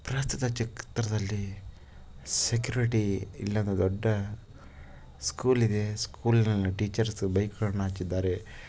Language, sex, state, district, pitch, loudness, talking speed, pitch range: Kannada, male, Karnataka, Shimoga, 100 Hz, -29 LUFS, 90 wpm, 95-115 Hz